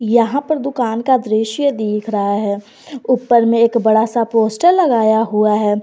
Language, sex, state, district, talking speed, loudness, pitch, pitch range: Hindi, female, Jharkhand, Garhwa, 175 wpm, -15 LUFS, 230 Hz, 215-250 Hz